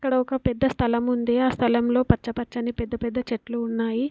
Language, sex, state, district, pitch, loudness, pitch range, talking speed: Telugu, female, Telangana, Komaram Bheem, 240 Hz, -24 LUFS, 235-250 Hz, 175 wpm